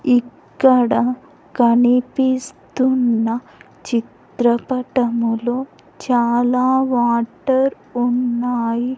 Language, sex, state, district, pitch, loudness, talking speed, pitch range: Telugu, female, Andhra Pradesh, Sri Satya Sai, 245 Hz, -18 LUFS, 45 wpm, 240-260 Hz